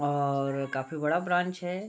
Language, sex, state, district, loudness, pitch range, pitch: Hindi, male, Bihar, Gopalganj, -29 LUFS, 140-180 Hz, 150 Hz